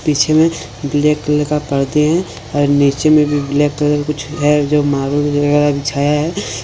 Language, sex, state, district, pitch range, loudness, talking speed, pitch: Hindi, male, Jharkhand, Deoghar, 145-150 Hz, -15 LUFS, 160 wpm, 145 Hz